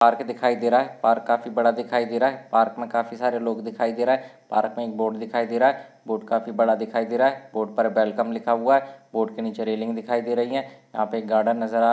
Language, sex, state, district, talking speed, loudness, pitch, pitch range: Hindi, male, Maharashtra, Solapur, 255 wpm, -23 LUFS, 115 Hz, 115-125 Hz